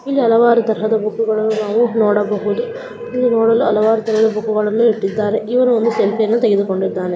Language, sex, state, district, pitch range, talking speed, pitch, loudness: Kannada, male, Karnataka, Raichur, 215-235 Hz, 150 wpm, 220 Hz, -16 LUFS